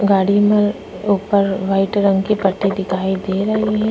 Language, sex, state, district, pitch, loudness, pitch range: Hindi, female, Maharashtra, Chandrapur, 200 Hz, -17 LUFS, 195-205 Hz